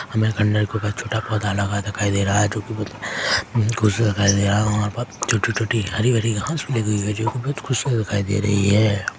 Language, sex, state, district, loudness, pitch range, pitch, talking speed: Hindi, male, Chhattisgarh, Korba, -21 LUFS, 105-115 Hz, 105 Hz, 235 wpm